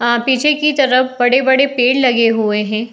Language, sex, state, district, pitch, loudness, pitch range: Hindi, female, Uttar Pradesh, Etah, 255 Hz, -13 LUFS, 235-265 Hz